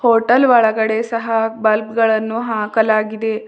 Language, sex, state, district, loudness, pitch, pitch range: Kannada, female, Karnataka, Bidar, -16 LUFS, 225 Hz, 220-230 Hz